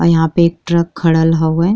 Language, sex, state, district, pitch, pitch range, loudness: Bhojpuri, female, Uttar Pradesh, Deoria, 170 Hz, 165-170 Hz, -14 LUFS